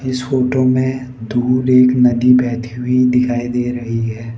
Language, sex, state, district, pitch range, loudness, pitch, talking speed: Hindi, male, Arunachal Pradesh, Lower Dibang Valley, 120-125 Hz, -15 LUFS, 125 Hz, 165 wpm